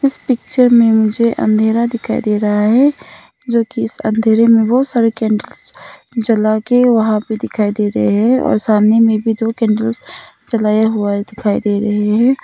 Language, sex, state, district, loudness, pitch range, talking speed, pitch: Hindi, female, Nagaland, Kohima, -14 LUFS, 215-235 Hz, 185 wpm, 225 Hz